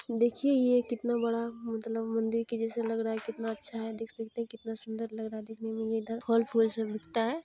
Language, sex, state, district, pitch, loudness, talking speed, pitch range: Hindi, female, Bihar, Jamui, 225 Hz, -32 LUFS, 215 wpm, 225-230 Hz